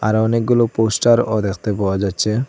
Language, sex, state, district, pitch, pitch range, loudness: Bengali, male, Assam, Hailakandi, 110 Hz, 100-115 Hz, -17 LUFS